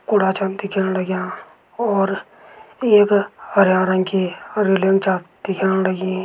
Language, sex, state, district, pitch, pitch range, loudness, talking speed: Garhwali, male, Uttarakhand, Uttarkashi, 195 Hz, 185-200 Hz, -19 LUFS, 135 wpm